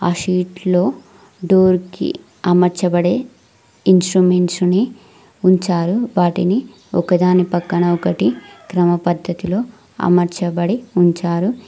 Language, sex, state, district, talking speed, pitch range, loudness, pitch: Telugu, female, Telangana, Mahabubabad, 80 wpm, 175-195 Hz, -16 LUFS, 180 Hz